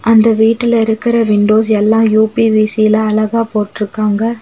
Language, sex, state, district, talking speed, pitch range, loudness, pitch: Tamil, female, Tamil Nadu, Nilgiris, 110 wpm, 215-225 Hz, -12 LUFS, 220 Hz